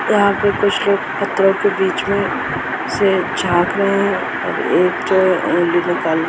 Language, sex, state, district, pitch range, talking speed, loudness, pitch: Hindi, female, Uttar Pradesh, Muzaffarnagar, 180-200 Hz, 135 wpm, -16 LUFS, 195 Hz